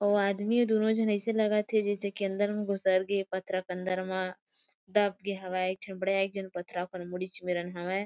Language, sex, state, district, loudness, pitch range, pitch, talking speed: Chhattisgarhi, female, Chhattisgarh, Kabirdham, -30 LUFS, 185-205 Hz, 195 Hz, 225 wpm